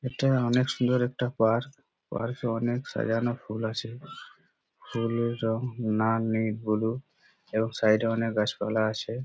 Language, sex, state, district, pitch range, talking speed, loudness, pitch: Bengali, male, West Bengal, Purulia, 110-125 Hz, 155 wpm, -28 LUFS, 115 Hz